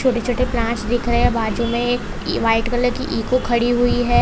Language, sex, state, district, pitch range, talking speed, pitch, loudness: Hindi, female, Gujarat, Valsad, 235-245 Hz, 225 wpm, 240 Hz, -19 LUFS